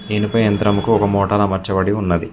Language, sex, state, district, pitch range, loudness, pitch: Telugu, male, Telangana, Mahabubabad, 100-105 Hz, -17 LUFS, 100 Hz